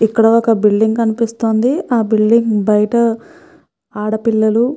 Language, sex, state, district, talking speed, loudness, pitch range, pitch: Telugu, female, Andhra Pradesh, Krishna, 115 wpm, -14 LUFS, 220-230 Hz, 225 Hz